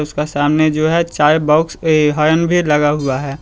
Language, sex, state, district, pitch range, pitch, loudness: Hindi, male, Bihar, Muzaffarpur, 150-160 Hz, 150 Hz, -14 LUFS